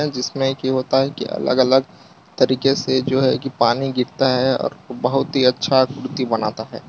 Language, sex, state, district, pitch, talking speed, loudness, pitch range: Hindi, male, Gujarat, Valsad, 130 Hz, 180 wpm, -19 LUFS, 125-135 Hz